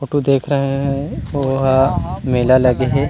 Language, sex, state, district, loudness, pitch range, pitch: Chhattisgarhi, male, Chhattisgarh, Rajnandgaon, -16 LUFS, 130-140 Hz, 135 Hz